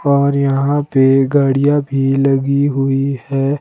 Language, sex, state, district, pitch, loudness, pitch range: Hindi, male, Himachal Pradesh, Shimla, 140 Hz, -14 LUFS, 135-140 Hz